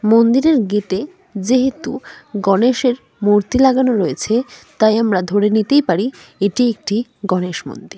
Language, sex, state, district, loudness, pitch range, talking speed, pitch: Bengali, female, West Bengal, Cooch Behar, -16 LUFS, 205-255 Hz, 130 wpm, 220 Hz